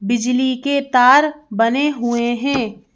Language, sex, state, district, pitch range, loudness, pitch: Hindi, female, Madhya Pradesh, Bhopal, 235-280 Hz, -16 LUFS, 250 Hz